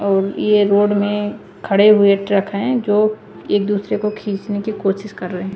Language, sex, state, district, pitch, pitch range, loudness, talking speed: Hindi, female, Haryana, Charkhi Dadri, 205 Hz, 200-210 Hz, -17 LUFS, 195 wpm